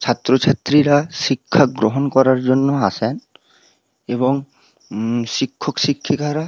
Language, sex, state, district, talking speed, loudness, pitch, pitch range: Bengali, male, West Bengal, Paschim Medinipur, 110 wpm, -17 LUFS, 135 Hz, 130-145 Hz